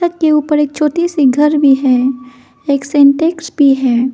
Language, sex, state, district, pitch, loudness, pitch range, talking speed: Hindi, female, Arunachal Pradesh, Lower Dibang Valley, 285 Hz, -12 LUFS, 270-305 Hz, 175 wpm